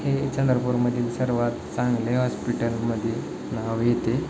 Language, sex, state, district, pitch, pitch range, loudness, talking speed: Marathi, male, Maharashtra, Chandrapur, 120 Hz, 115-125 Hz, -25 LUFS, 125 wpm